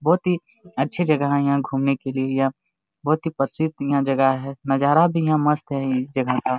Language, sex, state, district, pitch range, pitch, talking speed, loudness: Hindi, male, Jharkhand, Jamtara, 135-160 Hz, 140 Hz, 220 wpm, -22 LUFS